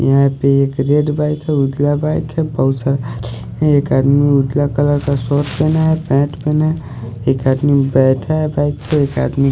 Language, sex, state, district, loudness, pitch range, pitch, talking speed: Hindi, male, Haryana, Rohtak, -15 LUFS, 135-150 Hz, 140 Hz, 190 wpm